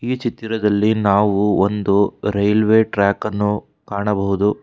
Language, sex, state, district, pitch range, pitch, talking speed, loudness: Kannada, male, Karnataka, Bangalore, 100-110 Hz, 105 Hz, 105 wpm, -18 LUFS